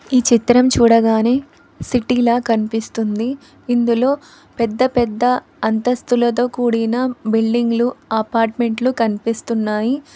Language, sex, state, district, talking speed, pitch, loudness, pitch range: Telugu, female, Telangana, Hyderabad, 75 wpm, 240 Hz, -17 LUFS, 225-250 Hz